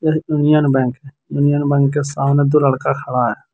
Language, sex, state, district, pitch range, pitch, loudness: Hindi, male, Jharkhand, Deoghar, 140-150 Hz, 145 Hz, -16 LUFS